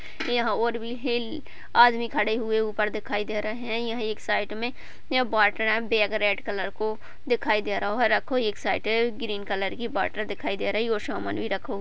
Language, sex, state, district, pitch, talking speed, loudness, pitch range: Hindi, female, Uttar Pradesh, Budaun, 220 Hz, 220 wpm, -26 LUFS, 210-240 Hz